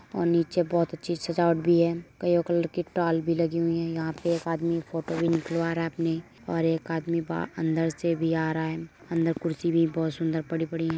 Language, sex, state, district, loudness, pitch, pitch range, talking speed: Hindi, female, Uttar Pradesh, Muzaffarnagar, -27 LUFS, 165 Hz, 165-170 Hz, 215 wpm